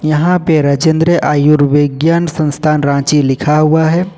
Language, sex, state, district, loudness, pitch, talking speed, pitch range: Hindi, male, Jharkhand, Ranchi, -11 LUFS, 155 Hz, 130 wpm, 145-165 Hz